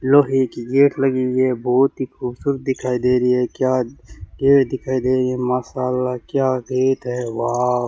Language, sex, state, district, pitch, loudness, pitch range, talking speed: Hindi, male, Rajasthan, Bikaner, 130 Hz, -19 LUFS, 125-130 Hz, 190 wpm